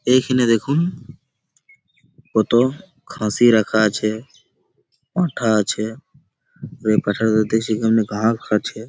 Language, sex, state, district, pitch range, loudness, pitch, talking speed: Bengali, male, West Bengal, Malda, 110-130 Hz, -19 LUFS, 115 Hz, 90 wpm